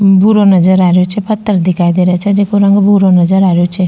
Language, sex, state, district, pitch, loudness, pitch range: Rajasthani, female, Rajasthan, Nagaur, 190 Hz, -9 LUFS, 180-200 Hz